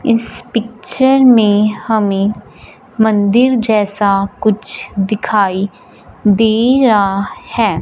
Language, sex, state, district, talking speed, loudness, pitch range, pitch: Hindi, female, Punjab, Fazilka, 85 wpm, -13 LUFS, 205-235 Hz, 215 Hz